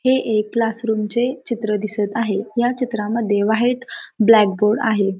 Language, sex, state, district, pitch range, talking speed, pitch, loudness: Marathi, female, Maharashtra, Pune, 210-240 Hz, 125 wpm, 220 Hz, -19 LUFS